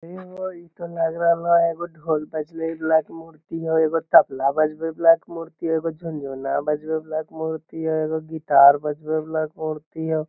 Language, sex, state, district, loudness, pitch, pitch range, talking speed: Magahi, male, Bihar, Lakhisarai, -22 LUFS, 160 Hz, 155-165 Hz, 190 wpm